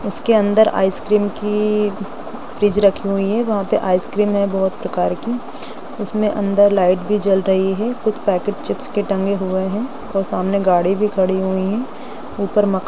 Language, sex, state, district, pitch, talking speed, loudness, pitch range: Hindi, female, Bihar, Gopalganj, 205 Hz, 185 wpm, -18 LUFS, 190-210 Hz